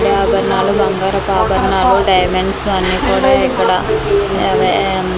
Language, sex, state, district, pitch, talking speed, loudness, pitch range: Telugu, female, Andhra Pradesh, Manyam, 190 Hz, 105 wpm, -13 LUFS, 185-195 Hz